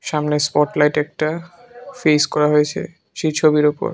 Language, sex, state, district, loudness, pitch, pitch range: Bengali, male, Tripura, Unakoti, -18 LUFS, 150 Hz, 150-170 Hz